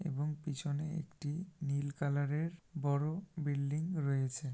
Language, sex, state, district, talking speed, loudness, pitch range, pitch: Bengali, male, West Bengal, Malda, 120 wpm, -38 LUFS, 140-160 Hz, 150 Hz